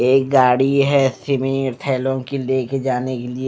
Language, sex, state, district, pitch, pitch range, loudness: Hindi, male, Punjab, Fazilka, 130 Hz, 130-135 Hz, -18 LUFS